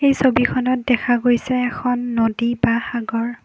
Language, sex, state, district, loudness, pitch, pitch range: Assamese, female, Assam, Kamrup Metropolitan, -19 LUFS, 245 Hz, 235-255 Hz